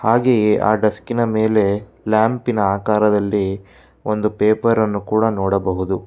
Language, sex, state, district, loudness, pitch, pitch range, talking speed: Kannada, male, Karnataka, Bangalore, -18 LUFS, 105 Hz, 100-110 Hz, 110 wpm